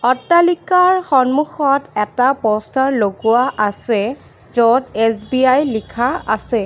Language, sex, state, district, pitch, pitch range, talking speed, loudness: Assamese, female, Assam, Kamrup Metropolitan, 255 Hz, 225-280 Hz, 90 wpm, -16 LUFS